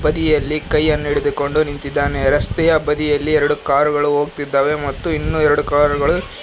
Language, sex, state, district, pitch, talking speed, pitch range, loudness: Kannada, male, Karnataka, Koppal, 145 Hz, 150 wpm, 145-150 Hz, -16 LUFS